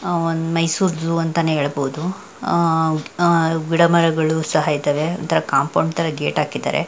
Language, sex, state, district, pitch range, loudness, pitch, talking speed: Kannada, female, Karnataka, Mysore, 155-170 Hz, -19 LUFS, 165 Hz, 150 wpm